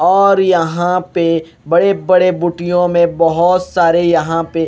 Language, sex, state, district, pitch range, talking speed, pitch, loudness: Hindi, male, Punjab, Kapurthala, 165-180 Hz, 155 wpm, 175 Hz, -13 LUFS